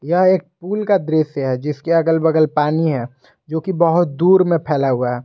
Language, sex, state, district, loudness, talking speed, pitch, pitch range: Hindi, male, Jharkhand, Garhwa, -17 LUFS, 215 wpm, 160 Hz, 145-175 Hz